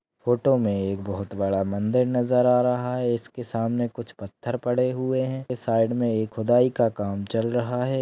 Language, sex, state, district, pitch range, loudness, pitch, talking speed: Hindi, male, Maharashtra, Solapur, 110-125 Hz, -24 LUFS, 120 Hz, 195 wpm